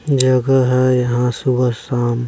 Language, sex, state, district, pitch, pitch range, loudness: Hindi, male, Chhattisgarh, Balrampur, 125 Hz, 120-130 Hz, -16 LUFS